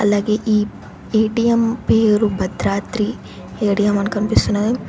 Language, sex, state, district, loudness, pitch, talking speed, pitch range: Telugu, female, Telangana, Mahabubabad, -18 LUFS, 210 Hz, 100 wpm, 205-220 Hz